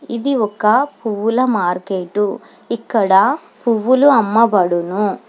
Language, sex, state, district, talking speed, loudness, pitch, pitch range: Telugu, female, Telangana, Hyderabad, 80 wpm, -16 LUFS, 215 Hz, 195-240 Hz